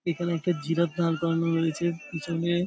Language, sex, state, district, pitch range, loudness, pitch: Bengali, male, West Bengal, Paschim Medinipur, 165-170 Hz, -27 LUFS, 170 Hz